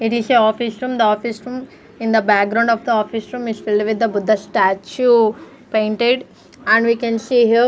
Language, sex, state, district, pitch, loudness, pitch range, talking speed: English, female, Punjab, Fazilka, 225 Hz, -17 LUFS, 215-240 Hz, 210 wpm